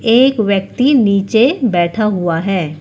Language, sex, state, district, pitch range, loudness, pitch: Hindi, female, Uttar Pradesh, Lucknow, 185-240 Hz, -13 LUFS, 210 Hz